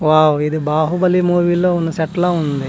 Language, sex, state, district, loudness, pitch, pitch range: Telugu, male, Andhra Pradesh, Manyam, -16 LUFS, 165 Hz, 155-175 Hz